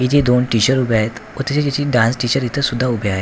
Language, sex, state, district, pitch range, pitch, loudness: Marathi, male, Maharashtra, Washim, 115-135 Hz, 125 Hz, -17 LUFS